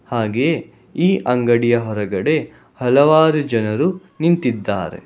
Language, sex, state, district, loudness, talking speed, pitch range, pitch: Kannada, male, Karnataka, Bangalore, -17 LUFS, 85 wpm, 115-155 Hz, 125 Hz